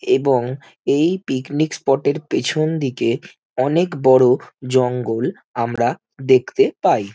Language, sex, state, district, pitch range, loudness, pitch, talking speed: Bengali, male, West Bengal, Jhargram, 125-155 Hz, -18 LUFS, 130 Hz, 115 wpm